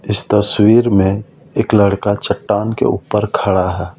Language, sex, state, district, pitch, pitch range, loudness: Hindi, male, Delhi, New Delhi, 105 Hz, 100-110 Hz, -14 LUFS